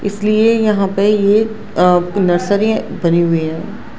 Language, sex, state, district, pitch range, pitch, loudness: Hindi, female, Gujarat, Gandhinagar, 180-215 Hz, 200 Hz, -14 LUFS